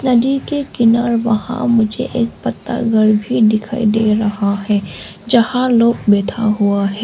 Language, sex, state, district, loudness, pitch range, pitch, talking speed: Hindi, female, Arunachal Pradesh, Lower Dibang Valley, -15 LUFS, 210-240 Hz, 225 Hz, 145 wpm